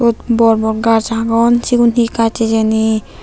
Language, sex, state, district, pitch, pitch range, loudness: Chakma, female, Tripura, Unakoti, 230 Hz, 220-235 Hz, -13 LUFS